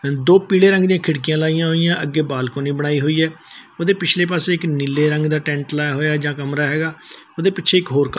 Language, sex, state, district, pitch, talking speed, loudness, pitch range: Punjabi, male, Punjab, Fazilka, 155 Hz, 220 wpm, -17 LUFS, 145-175 Hz